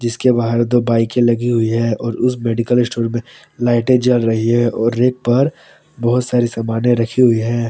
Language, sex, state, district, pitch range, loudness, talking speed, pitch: Hindi, male, Jharkhand, Palamu, 115-125 Hz, -16 LUFS, 195 wpm, 120 Hz